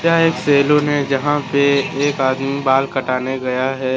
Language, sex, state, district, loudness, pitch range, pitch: Hindi, male, Jharkhand, Deoghar, -17 LUFS, 130-145 Hz, 140 Hz